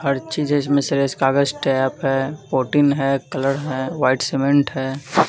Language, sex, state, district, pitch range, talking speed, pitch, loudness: Hindi, male, Bihar, Katihar, 135-145 Hz, 135 wpm, 140 Hz, -19 LUFS